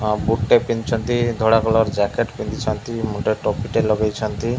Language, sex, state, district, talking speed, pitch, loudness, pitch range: Odia, male, Odisha, Malkangiri, 145 wpm, 110 Hz, -20 LUFS, 105-115 Hz